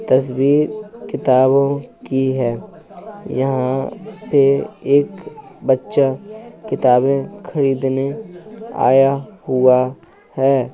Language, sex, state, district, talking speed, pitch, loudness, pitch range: Hindi, male, Uttar Pradesh, Hamirpur, 75 wpm, 135 Hz, -17 LUFS, 130-150 Hz